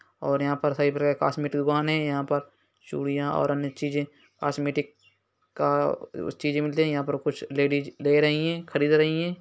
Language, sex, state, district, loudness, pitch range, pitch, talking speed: Hindi, male, Uttar Pradesh, Hamirpur, -26 LUFS, 140-150 Hz, 145 Hz, 195 wpm